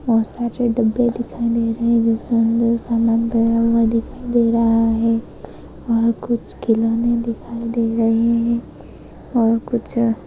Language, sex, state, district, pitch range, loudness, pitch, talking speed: Hindi, female, Maharashtra, Sindhudurg, 230-235 Hz, -18 LUFS, 230 Hz, 145 wpm